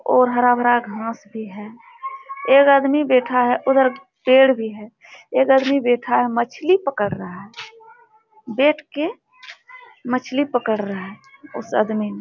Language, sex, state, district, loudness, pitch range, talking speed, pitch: Hindi, female, Bihar, Supaul, -18 LUFS, 230-300 Hz, 150 wpm, 255 Hz